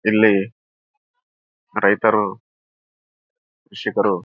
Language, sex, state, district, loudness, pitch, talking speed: Kannada, male, Karnataka, Raichur, -19 LUFS, 125 Hz, 95 wpm